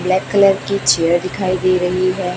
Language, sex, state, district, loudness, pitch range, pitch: Hindi, female, Chhattisgarh, Raipur, -15 LUFS, 180-190 Hz, 185 Hz